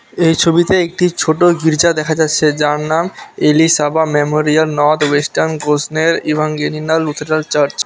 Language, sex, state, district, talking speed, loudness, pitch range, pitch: Bengali, male, West Bengal, Alipurduar, 135 wpm, -14 LUFS, 150-165 Hz, 155 Hz